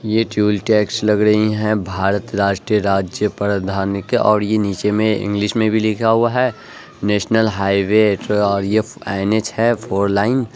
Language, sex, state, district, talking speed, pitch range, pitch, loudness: Angika, male, Bihar, Araria, 165 wpm, 100-110 Hz, 105 Hz, -17 LUFS